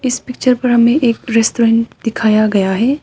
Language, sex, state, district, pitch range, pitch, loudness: Hindi, female, Arunachal Pradesh, Papum Pare, 225-250 Hz, 230 Hz, -13 LUFS